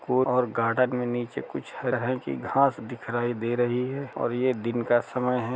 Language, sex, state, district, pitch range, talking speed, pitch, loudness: Hindi, male, Chhattisgarh, Kabirdham, 120-125 Hz, 215 wpm, 120 Hz, -27 LUFS